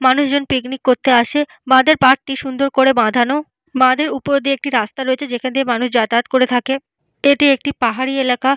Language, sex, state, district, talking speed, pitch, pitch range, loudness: Bengali, female, Jharkhand, Jamtara, 175 wpm, 265 Hz, 255-280 Hz, -15 LUFS